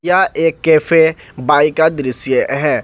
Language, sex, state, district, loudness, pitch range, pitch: Hindi, male, Jharkhand, Ranchi, -14 LUFS, 145-165 Hz, 160 Hz